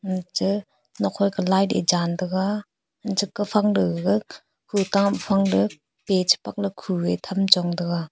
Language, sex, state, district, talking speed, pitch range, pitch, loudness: Wancho, female, Arunachal Pradesh, Longding, 140 wpm, 175-200 Hz, 190 Hz, -23 LUFS